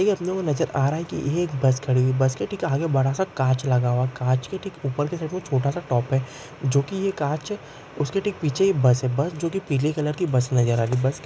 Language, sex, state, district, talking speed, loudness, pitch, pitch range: Hindi, male, Andhra Pradesh, Guntur, 255 wpm, -23 LUFS, 140 Hz, 130-170 Hz